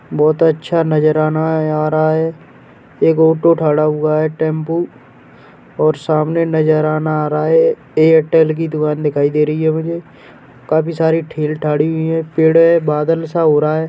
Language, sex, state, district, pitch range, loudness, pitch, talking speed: Hindi, male, Uttar Pradesh, Etah, 155-160 Hz, -14 LUFS, 155 Hz, 170 wpm